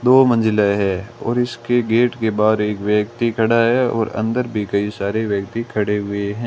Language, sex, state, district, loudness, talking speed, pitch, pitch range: Hindi, male, Rajasthan, Bikaner, -18 LUFS, 195 wpm, 110 Hz, 105-120 Hz